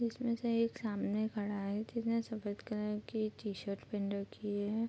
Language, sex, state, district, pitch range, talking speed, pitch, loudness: Hindi, female, Bihar, Madhepura, 205-230 Hz, 145 wpm, 215 Hz, -38 LUFS